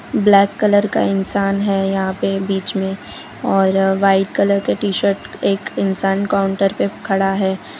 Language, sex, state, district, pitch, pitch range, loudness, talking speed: Hindi, female, Gujarat, Valsad, 195 Hz, 195-200 Hz, -17 LUFS, 160 wpm